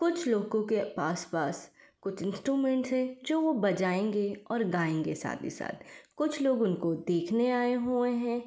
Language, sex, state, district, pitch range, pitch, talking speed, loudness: Hindi, female, Uttar Pradesh, Varanasi, 190-255 Hz, 220 Hz, 155 wpm, -30 LUFS